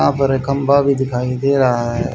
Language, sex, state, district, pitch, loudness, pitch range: Hindi, male, Haryana, Charkhi Dadri, 135 Hz, -16 LUFS, 125-140 Hz